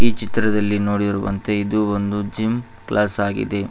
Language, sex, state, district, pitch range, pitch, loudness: Kannada, male, Karnataka, Koppal, 100-110 Hz, 105 Hz, -21 LUFS